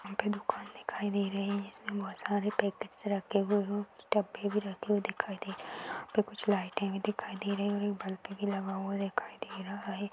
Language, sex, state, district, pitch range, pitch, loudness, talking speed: Hindi, female, Uttar Pradesh, Muzaffarnagar, 195-210 Hz, 205 Hz, -35 LUFS, 225 wpm